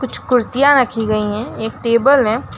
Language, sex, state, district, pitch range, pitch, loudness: Hindi, female, West Bengal, Alipurduar, 220-260 Hz, 235 Hz, -15 LUFS